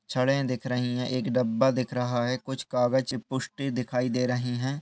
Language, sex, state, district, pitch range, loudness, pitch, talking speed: Hindi, male, Uttar Pradesh, Hamirpur, 125-130 Hz, -28 LUFS, 125 Hz, 210 wpm